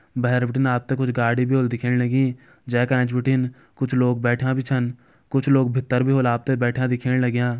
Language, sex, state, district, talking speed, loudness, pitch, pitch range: Garhwali, male, Uttarakhand, Uttarkashi, 195 wpm, -21 LUFS, 125 Hz, 125-130 Hz